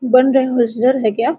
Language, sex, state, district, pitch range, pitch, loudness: Hindi, female, Jharkhand, Sahebganj, 235-260 Hz, 255 Hz, -15 LUFS